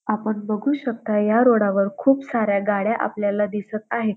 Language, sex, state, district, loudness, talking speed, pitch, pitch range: Marathi, female, Maharashtra, Dhule, -21 LUFS, 175 wpm, 215 Hz, 210-235 Hz